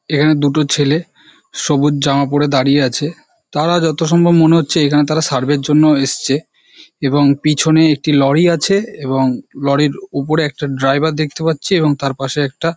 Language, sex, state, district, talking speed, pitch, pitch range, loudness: Bengali, male, West Bengal, North 24 Parganas, 160 wpm, 150 Hz, 140-160 Hz, -14 LUFS